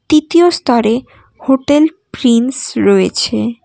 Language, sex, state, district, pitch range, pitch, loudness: Bengali, female, West Bengal, Cooch Behar, 235-310 Hz, 270 Hz, -12 LUFS